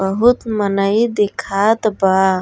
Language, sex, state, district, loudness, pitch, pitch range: Bhojpuri, female, Uttar Pradesh, Gorakhpur, -16 LUFS, 205 Hz, 195-225 Hz